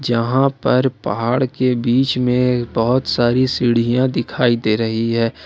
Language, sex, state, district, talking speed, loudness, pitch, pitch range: Hindi, male, Jharkhand, Ranchi, 145 wpm, -17 LUFS, 125 Hz, 115-130 Hz